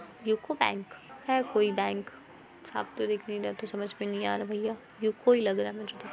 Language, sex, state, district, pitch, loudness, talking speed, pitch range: Hindi, female, Bihar, Muzaffarpur, 210 Hz, -31 LUFS, 245 wpm, 195-225 Hz